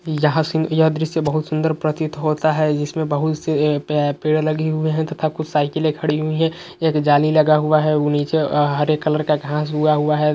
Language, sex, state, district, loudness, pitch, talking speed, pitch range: Hindi, male, Uttar Pradesh, Etah, -19 LUFS, 155 Hz, 215 wpm, 150-155 Hz